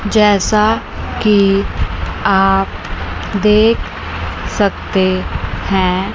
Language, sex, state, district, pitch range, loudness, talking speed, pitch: Hindi, female, Chandigarh, Chandigarh, 195-210 Hz, -15 LUFS, 60 wpm, 200 Hz